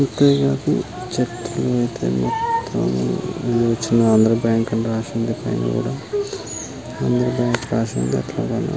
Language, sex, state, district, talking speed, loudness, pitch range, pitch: Telugu, male, Andhra Pradesh, Guntur, 125 wpm, -20 LUFS, 110-125 Hz, 115 Hz